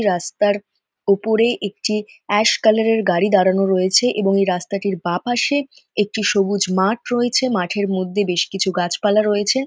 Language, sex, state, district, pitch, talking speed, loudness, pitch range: Bengali, female, West Bengal, North 24 Parganas, 205 Hz, 135 wpm, -18 LUFS, 190-220 Hz